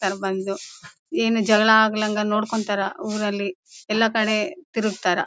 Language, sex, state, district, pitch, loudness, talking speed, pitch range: Kannada, female, Karnataka, Bellary, 215 Hz, -22 LUFS, 100 wpm, 195-220 Hz